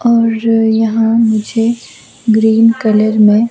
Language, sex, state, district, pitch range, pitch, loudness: Hindi, female, Himachal Pradesh, Shimla, 220-230 Hz, 225 Hz, -11 LUFS